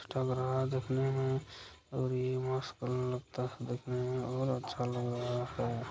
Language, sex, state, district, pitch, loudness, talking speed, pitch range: Hindi, male, Bihar, Supaul, 125 Hz, -36 LUFS, 185 wpm, 125-130 Hz